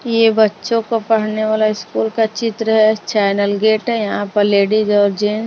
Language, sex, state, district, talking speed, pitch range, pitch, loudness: Hindi, female, Maharashtra, Mumbai Suburban, 185 wpm, 205-225 Hz, 215 Hz, -15 LUFS